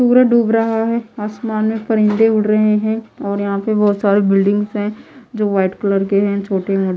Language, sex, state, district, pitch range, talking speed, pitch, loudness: Hindi, female, Chhattisgarh, Raipur, 200-225 Hz, 205 wpm, 210 Hz, -16 LUFS